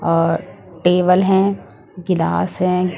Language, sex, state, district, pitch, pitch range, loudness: Hindi, female, Punjab, Pathankot, 180 Hz, 175-185 Hz, -17 LUFS